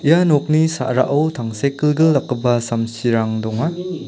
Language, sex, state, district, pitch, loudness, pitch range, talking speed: Garo, male, Meghalaya, South Garo Hills, 140 Hz, -18 LUFS, 115-155 Hz, 105 wpm